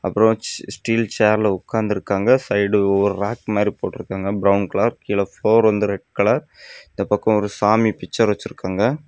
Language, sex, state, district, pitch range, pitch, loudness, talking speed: Tamil, male, Tamil Nadu, Kanyakumari, 100-110 Hz, 105 Hz, -19 LUFS, 145 wpm